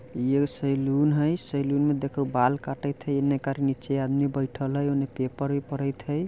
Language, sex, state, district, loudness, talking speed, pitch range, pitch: Bajjika, male, Bihar, Vaishali, -26 LUFS, 155 wpm, 135-140 Hz, 140 Hz